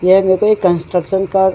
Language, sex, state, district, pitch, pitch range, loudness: Hindi, female, Uttarakhand, Tehri Garhwal, 190 Hz, 180-195 Hz, -14 LUFS